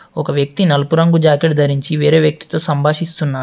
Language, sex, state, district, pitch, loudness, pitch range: Telugu, male, Telangana, Adilabad, 155 Hz, -14 LUFS, 145-160 Hz